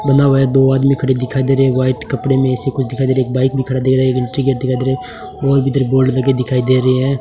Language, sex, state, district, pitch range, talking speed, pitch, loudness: Hindi, male, Rajasthan, Bikaner, 130-135 Hz, 275 wpm, 130 Hz, -15 LUFS